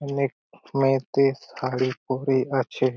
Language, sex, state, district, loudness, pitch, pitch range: Bengali, male, West Bengal, Purulia, -25 LUFS, 135 Hz, 130-135 Hz